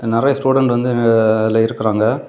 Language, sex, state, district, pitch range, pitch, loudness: Tamil, male, Tamil Nadu, Kanyakumari, 110-130 Hz, 115 Hz, -15 LUFS